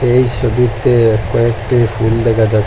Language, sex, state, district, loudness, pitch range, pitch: Bengali, male, Assam, Hailakandi, -13 LUFS, 110-125 Hz, 115 Hz